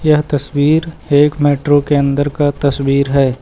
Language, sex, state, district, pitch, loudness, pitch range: Hindi, male, Uttar Pradesh, Lucknow, 145 Hz, -14 LUFS, 140-150 Hz